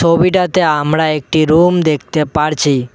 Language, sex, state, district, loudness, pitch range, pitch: Bengali, male, West Bengal, Cooch Behar, -13 LUFS, 150-170 Hz, 155 Hz